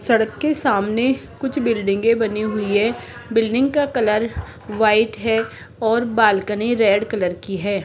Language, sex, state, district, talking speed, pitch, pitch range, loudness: Hindi, female, Rajasthan, Jaipur, 145 wpm, 225 Hz, 210-235 Hz, -19 LUFS